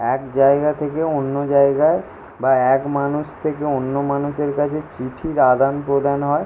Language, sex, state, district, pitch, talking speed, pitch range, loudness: Bengali, male, West Bengal, Jalpaiguri, 140 Hz, 150 wpm, 135-150 Hz, -19 LUFS